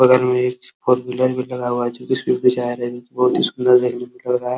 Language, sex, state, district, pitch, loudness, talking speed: Hindi, male, Uttar Pradesh, Hamirpur, 125 Hz, -19 LUFS, 300 wpm